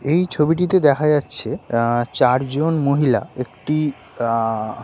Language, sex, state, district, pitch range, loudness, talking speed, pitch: Bengali, male, West Bengal, Purulia, 120-150 Hz, -19 LUFS, 110 wpm, 135 Hz